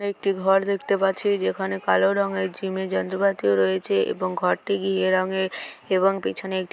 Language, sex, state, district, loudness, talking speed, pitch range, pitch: Bengali, male, West Bengal, Kolkata, -23 LUFS, 150 wpm, 170-195 Hz, 190 Hz